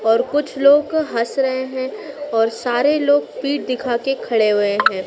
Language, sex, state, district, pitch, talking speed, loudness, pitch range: Hindi, female, Madhya Pradesh, Dhar, 260 Hz, 180 wpm, -18 LUFS, 230-285 Hz